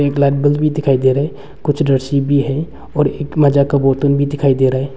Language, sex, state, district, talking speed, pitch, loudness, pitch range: Hindi, male, Arunachal Pradesh, Longding, 255 wpm, 140 Hz, -15 LUFS, 135-145 Hz